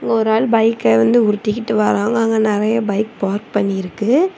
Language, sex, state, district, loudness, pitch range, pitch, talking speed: Tamil, female, Tamil Nadu, Kanyakumari, -16 LUFS, 205-230 Hz, 215 Hz, 150 wpm